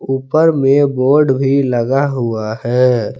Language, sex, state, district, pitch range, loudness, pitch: Hindi, male, Jharkhand, Palamu, 120-140 Hz, -14 LUFS, 135 Hz